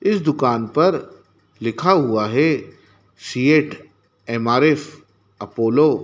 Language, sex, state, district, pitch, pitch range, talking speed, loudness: Hindi, male, Madhya Pradesh, Dhar, 115 Hz, 105-150 Hz, 100 wpm, -18 LUFS